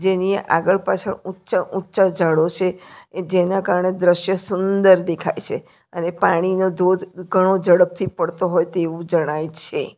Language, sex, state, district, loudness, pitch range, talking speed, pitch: Gujarati, female, Gujarat, Valsad, -19 LUFS, 170-190 Hz, 145 wpm, 185 Hz